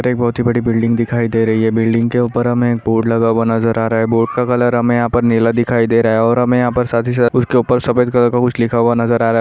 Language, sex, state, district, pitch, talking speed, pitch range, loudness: Hindi, male, Maharashtra, Nagpur, 120 Hz, 310 wpm, 115-120 Hz, -14 LUFS